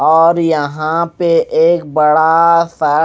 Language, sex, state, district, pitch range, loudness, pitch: Hindi, male, Odisha, Malkangiri, 155-170 Hz, -12 LUFS, 165 Hz